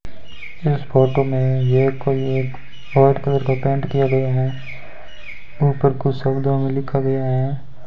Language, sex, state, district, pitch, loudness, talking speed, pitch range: Hindi, male, Rajasthan, Bikaner, 135 Hz, -19 LUFS, 150 wpm, 130-140 Hz